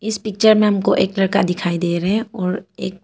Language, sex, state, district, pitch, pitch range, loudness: Hindi, female, Arunachal Pradesh, Papum Pare, 195 Hz, 185-215 Hz, -18 LUFS